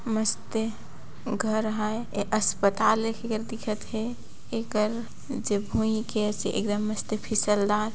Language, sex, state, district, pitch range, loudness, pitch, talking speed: Sadri, female, Chhattisgarh, Jashpur, 210-220 Hz, -28 LUFS, 215 Hz, 120 wpm